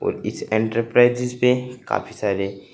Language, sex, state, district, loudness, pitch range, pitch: Hindi, male, Uttar Pradesh, Saharanpur, -21 LUFS, 110-125 Hz, 120 Hz